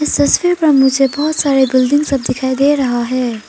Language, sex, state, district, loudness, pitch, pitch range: Hindi, female, Arunachal Pradesh, Papum Pare, -13 LUFS, 275 Hz, 260-290 Hz